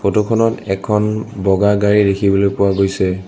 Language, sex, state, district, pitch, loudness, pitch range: Assamese, male, Assam, Sonitpur, 100 Hz, -15 LUFS, 95-105 Hz